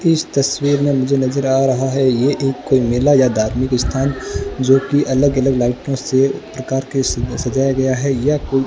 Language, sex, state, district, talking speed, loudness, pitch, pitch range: Hindi, male, Rajasthan, Bikaner, 200 wpm, -16 LUFS, 135 Hz, 130-140 Hz